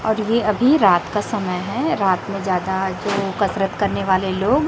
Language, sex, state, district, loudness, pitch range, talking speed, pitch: Hindi, female, Chhattisgarh, Raipur, -19 LUFS, 190-215 Hz, 190 wpm, 200 Hz